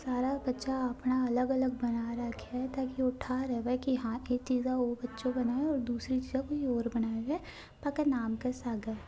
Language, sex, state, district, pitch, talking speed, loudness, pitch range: Hindi, female, Rajasthan, Nagaur, 255 Hz, 180 wpm, -33 LUFS, 240-260 Hz